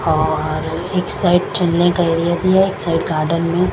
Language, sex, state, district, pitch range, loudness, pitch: Hindi, female, Chandigarh, Chandigarh, 160-180 Hz, -17 LUFS, 170 Hz